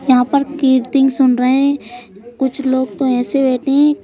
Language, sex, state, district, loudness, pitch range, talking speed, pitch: Hindi, female, Madhya Pradesh, Bhopal, -15 LUFS, 250-275 Hz, 180 wpm, 265 Hz